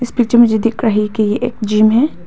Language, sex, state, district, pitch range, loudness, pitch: Hindi, female, Arunachal Pradesh, Papum Pare, 215-240 Hz, -13 LUFS, 225 Hz